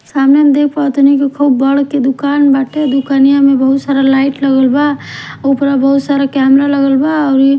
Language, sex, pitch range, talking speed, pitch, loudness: Bhojpuri, female, 270-280 Hz, 205 wpm, 275 Hz, -11 LUFS